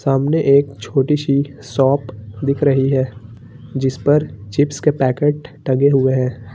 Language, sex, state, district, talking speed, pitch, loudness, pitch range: Hindi, male, Uttar Pradesh, Lucknow, 145 wpm, 135 Hz, -17 LUFS, 125-145 Hz